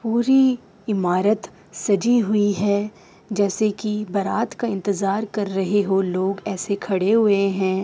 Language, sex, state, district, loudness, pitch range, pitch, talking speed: Hindi, female, Uttar Pradesh, Jyotiba Phule Nagar, -21 LUFS, 195-215 Hz, 205 Hz, 140 wpm